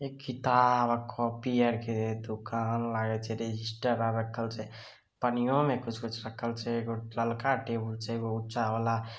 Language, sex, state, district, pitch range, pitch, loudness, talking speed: Maithili, male, Bihar, Samastipur, 110-120 Hz, 115 Hz, -31 LUFS, 165 wpm